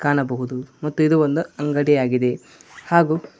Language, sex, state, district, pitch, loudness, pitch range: Kannada, male, Karnataka, Koppal, 145 Hz, -20 LUFS, 130-155 Hz